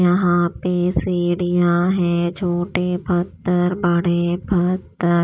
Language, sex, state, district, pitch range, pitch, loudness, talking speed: Hindi, female, Maharashtra, Washim, 175-180 Hz, 175 Hz, -19 LUFS, 105 wpm